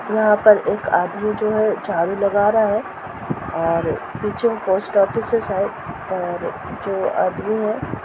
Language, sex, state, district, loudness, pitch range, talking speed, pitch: Hindi, female, Bihar, Purnia, -20 LUFS, 190-215 Hz, 165 wpm, 205 Hz